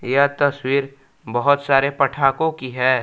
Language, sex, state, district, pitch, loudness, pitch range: Hindi, male, Jharkhand, Palamu, 135 Hz, -19 LUFS, 130-145 Hz